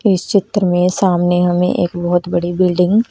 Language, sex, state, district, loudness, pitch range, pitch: Hindi, female, Haryana, Rohtak, -15 LUFS, 175-190 Hz, 180 Hz